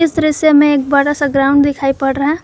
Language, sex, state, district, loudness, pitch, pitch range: Hindi, female, Jharkhand, Garhwa, -12 LUFS, 285 Hz, 275-305 Hz